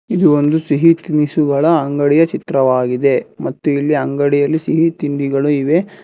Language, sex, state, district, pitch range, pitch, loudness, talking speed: Kannada, male, Karnataka, Bangalore, 140-160 Hz, 145 Hz, -15 LUFS, 120 wpm